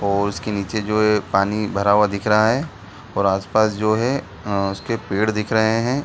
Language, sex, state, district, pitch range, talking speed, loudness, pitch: Hindi, male, Bihar, Gaya, 100-110 Hz, 210 wpm, -20 LUFS, 105 Hz